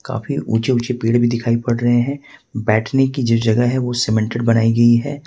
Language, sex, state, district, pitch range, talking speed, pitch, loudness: Hindi, male, Jharkhand, Ranchi, 115-125 Hz, 205 wpm, 120 Hz, -17 LUFS